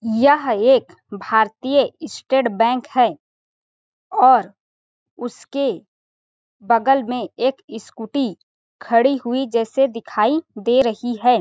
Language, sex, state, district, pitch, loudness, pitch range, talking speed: Hindi, female, Chhattisgarh, Balrampur, 245 Hz, -18 LUFS, 230-270 Hz, 100 wpm